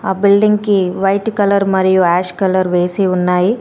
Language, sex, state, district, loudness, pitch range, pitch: Telugu, female, Telangana, Komaram Bheem, -13 LUFS, 180-200 Hz, 190 Hz